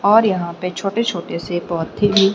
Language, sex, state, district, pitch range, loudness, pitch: Hindi, female, Haryana, Rohtak, 175-205 Hz, -19 LUFS, 190 Hz